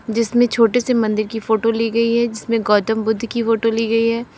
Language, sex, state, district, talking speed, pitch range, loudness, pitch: Hindi, female, Uttar Pradesh, Lalitpur, 235 wpm, 220-230 Hz, -17 LUFS, 230 Hz